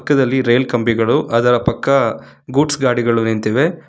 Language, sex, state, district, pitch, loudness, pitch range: Kannada, male, Karnataka, Bangalore, 125 Hz, -16 LUFS, 115-140 Hz